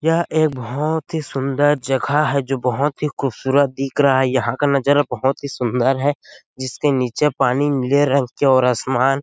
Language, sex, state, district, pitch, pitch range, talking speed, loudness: Hindi, male, Chhattisgarh, Sarguja, 140 Hz, 130-145 Hz, 175 wpm, -18 LUFS